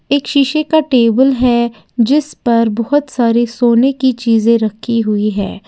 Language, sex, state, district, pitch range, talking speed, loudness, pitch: Hindi, female, Uttar Pradesh, Lalitpur, 230-270 Hz, 150 wpm, -13 LUFS, 235 Hz